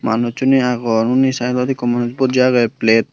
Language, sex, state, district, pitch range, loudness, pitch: Chakma, female, Tripura, Unakoti, 115-130 Hz, -16 LUFS, 120 Hz